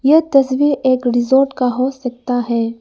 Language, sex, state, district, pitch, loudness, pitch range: Hindi, female, Arunachal Pradesh, Lower Dibang Valley, 255 Hz, -15 LUFS, 245-270 Hz